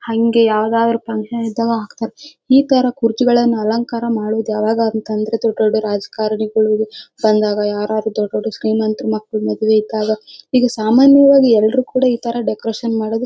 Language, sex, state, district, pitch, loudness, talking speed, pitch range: Kannada, female, Karnataka, Bellary, 225 Hz, -16 LUFS, 145 wpm, 215-235 Hz